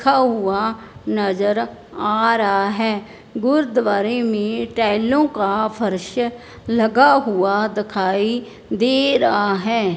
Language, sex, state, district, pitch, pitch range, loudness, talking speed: Hindi, male, Punjab, Fazilka, 220 Hz, 205-235 Hz, -19 LUFS, 100 wpm